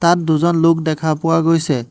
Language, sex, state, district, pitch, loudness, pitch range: Assamese, male, Assam, Hailakandi, 165 Hz, -16 LUFS, 155-165 Hz